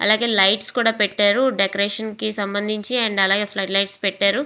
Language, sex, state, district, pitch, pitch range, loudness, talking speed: Telugu, female, Andhra Pradesh, Visakhapatnam, 205 Hz, 200-220 Hz, -17 LUFS, 150 wpm